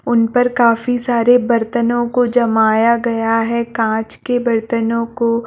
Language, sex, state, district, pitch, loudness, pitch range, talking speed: Hindi, female, Chhattisgarh, Balrampur, 235 Hz, -15 LUFS, 230-245 Hz, 140 wpm